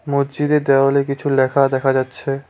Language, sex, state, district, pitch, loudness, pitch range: Bengali, male, West Bengal, Cooch Behar, 140 Hz, -17 LUFS, 135-140 Hz